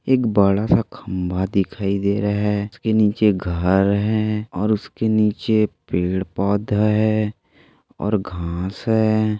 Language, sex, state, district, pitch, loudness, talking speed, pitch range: Hindi, male, Maharashtra, Aurangabad, 105 Hz, -20 LUFS, 135 wpm, 95-110 Hz